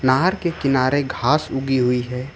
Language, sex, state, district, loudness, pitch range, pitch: Hindi, male, Jharkhand, Ranchi, -20 LUFS, 130-145 Hz, 135 Hz